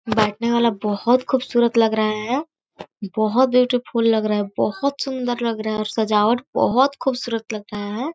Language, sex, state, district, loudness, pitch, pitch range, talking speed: Hindi, female, Chhattisgarh, Korba, -20 LUFS, 230 Hz, 215-250 Hz, 185 wpm